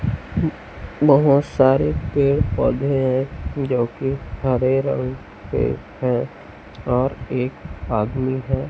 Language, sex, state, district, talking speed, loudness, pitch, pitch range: Hindi, male, Chhattisgarh, Raipur, 90 wpm, -20 LUFS, 130 Hz, 115-135 Hz